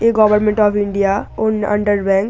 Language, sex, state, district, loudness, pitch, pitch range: Bengali, female, West Bengal, North 24 Parganas, -15 LUFS, 210 Hz, 200-215 Hz